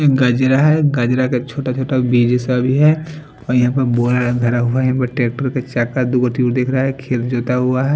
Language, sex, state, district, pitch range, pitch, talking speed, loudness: Hindi, male, Punjab, Fazilka, 125-130 Hz, 125 Hz, 235 wpm, -16 LUFS